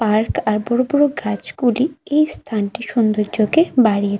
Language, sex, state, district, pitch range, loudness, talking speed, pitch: Bengali, female, Tripura, West Tripura, 210-275 Hz, -18 LUFS, 130 wpm, 225 Hz